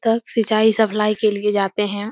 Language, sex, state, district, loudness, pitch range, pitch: Hindi, female, Uttar Pradesh, Etah, -18 LUFS, 210-220 Hz, 215 Hz